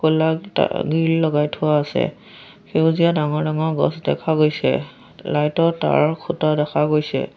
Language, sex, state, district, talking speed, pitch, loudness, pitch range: Assamese, female, Assam, Sonitpur, 130 wpm, 155 Hz, -19 LUFS, 150-165 Hz